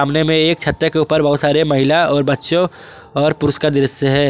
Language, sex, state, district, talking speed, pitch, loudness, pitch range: Hindi, male, Jharkhand, Garhwa, 225 wpm, 150 Hz, -15 LUFS, 145-155 Hz